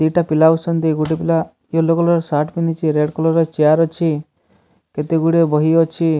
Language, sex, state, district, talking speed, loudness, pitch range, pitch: Odia, male, Odisha, Sambalpur, 155 wpm, -16 LUFS, 155-165 Hz, 160 Hz